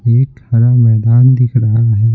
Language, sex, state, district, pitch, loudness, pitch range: Hindi, male, Bihar, Patna, 120 Hz, -11 LUFS, 115-125 Hz